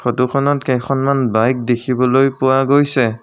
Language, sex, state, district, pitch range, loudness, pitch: Assamese, male, Assam, Sonitpur, 125-135 Hz, -15 LUFS, 130 Hz